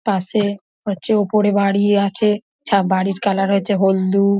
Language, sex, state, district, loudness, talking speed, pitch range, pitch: Bengali, female, West Bengal, North 24 Parganas, -18 LUFS, 135 wpm, 195-205 Hz, 200 Hz